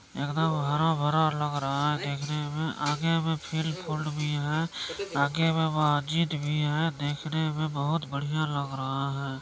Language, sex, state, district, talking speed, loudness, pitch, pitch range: Maithili, male, Bihar, Supaul, 165 wpm, -28 LUFS, 150 Hz, 145-160 Hz